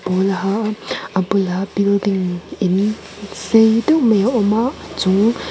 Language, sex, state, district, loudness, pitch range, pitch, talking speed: Mizo, female, Mizoram, Aizawl, -17 LUFS, 190-220 Hz, 200 Hz, 165 wpm